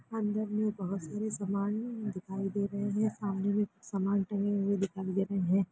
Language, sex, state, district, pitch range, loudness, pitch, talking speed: Hindi, female, Chhattisgarh, Raigarh, 195-210 Hz, -33 LUFS, 200 Hz, 200 wpm